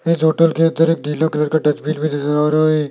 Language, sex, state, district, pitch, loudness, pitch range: Hindi, male, Rajasthan, Jaipur, 155 Hz, -16 LUFS, 150-160 Hz